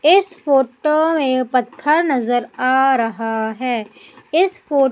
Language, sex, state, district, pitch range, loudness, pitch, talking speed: Hindi, female, Madhya Pradesh, Umaria, 245-310 Hz, -17 LUFS, 265 Hz, 120 wpm